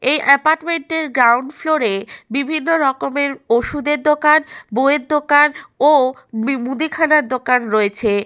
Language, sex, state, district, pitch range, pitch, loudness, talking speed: Bengali, female, West Bengal, Malda, 250-305 Hz, 280 Hz, -16 LUFS, 125 wpm